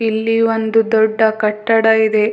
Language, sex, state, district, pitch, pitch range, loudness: Kannada, female, Karnataka, Bidar, 220 Hz, 220-225 Hz, -14 LUFS